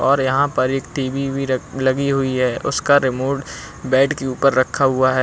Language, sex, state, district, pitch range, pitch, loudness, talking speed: Hindi, male, Uttar Pradesh, Lucknow, 130-140 Hz, 135 Hz, -18 LUFS, 195 wpm